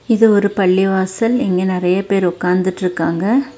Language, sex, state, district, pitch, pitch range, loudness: Tamil, female, Tamil Nadu, Nilgiris, 190 Hz, 180-210 Hz, -15 LUFS